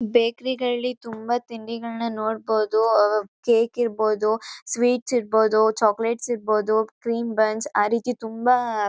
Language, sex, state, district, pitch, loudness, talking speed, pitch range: Kannada, female, Karnataka, Chamarajanagar, 230 Hz, -23 LUFS, 100 wpm, 220-240 Hz